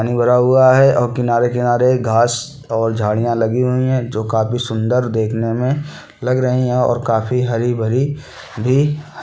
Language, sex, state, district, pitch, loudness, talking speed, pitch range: Hindi, male, Chhattisgarh, Balrampur, 125 Hz, -16 LUFS, 160 wpm, 115-130 Hz